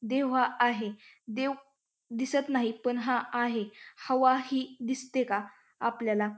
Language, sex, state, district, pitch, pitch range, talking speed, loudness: Marathi, female, Maharashtra, Pune, 245 Hz, 230-260 Hz, 130 wpm, -30 LUFS